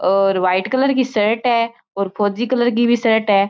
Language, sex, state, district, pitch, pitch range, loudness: Marwari, female, Rajasthan, Churu, 225 Hz, 195-240 Hz, -17 LUFS